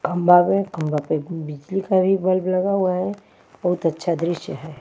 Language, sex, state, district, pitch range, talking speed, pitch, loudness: Hindi, female, Bihar, Patna, 160-190 Hz, 185 wpm, 180 Hz, -21 LUFS